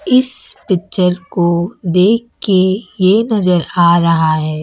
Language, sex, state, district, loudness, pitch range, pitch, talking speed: Hindi, female, Chhattisgarh, Raipur, -14 LUFS, 170-210 Hz, 185 Hz, 130 wpm